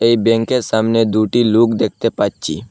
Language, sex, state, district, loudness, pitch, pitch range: Bengali, male, Assam, Hailakandi, -15 LUFS, 115 Hz, 110-115 Hz